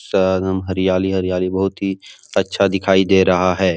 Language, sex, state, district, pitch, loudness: Hindi, male, Bihar, Supaul, 95 Hz, -17 LUFS